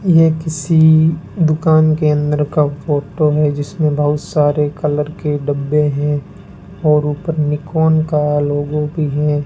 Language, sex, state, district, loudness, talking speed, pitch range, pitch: Hindi, male, Rajasthan, Bikaner, -15 LUFS, 145 wpm, 145-155 Hz, 150 Hz